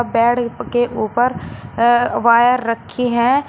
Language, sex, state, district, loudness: Hindi, male, Uttar Pradesh, Shamli, -16 LUFS